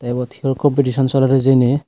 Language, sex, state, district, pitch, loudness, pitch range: Chakma, female, Tripura, West Tripura, 135 Hz, -16 LUFS, 125-135 Hz